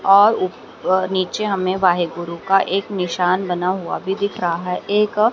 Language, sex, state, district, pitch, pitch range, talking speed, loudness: Hindi, female, Haryana, Rohtak, 185 Hz, 180-200 Hz, 170 wpm, -19 LUFS